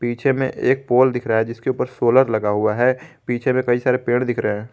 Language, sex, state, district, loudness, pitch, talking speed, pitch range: Hindi, male, Jharkhand, Garhwa, -19 LUFS, 120 Hz, 255 wpm, 115-130 Hz